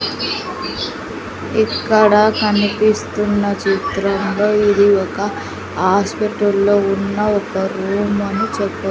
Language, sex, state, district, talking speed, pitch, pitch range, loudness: Telugu, female, Andhra Pradesh, Sri Satya Sai, 75 wpm, 205 Hz, 195-210 Hz, -16 LUFS